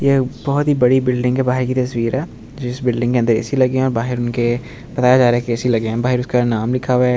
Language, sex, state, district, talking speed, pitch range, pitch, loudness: Hindi, male, Delhi, New Delhi, 320 wpm, 120-130 Hz, 125 Hz, -17 LUFS